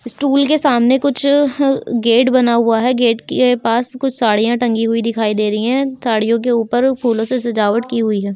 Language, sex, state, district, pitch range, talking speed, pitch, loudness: Hindi, female, Uttar Pradesh, Ghazipur, 230-260 Hz, 200 wpm, 240 Hz, -15 LUFS